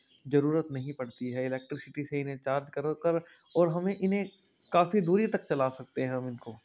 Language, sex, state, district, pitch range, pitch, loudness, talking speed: Hindi, male, Rajasthan, Churu, 130-175 Hz, 145 Hz, -31 LUFS, 190 wpm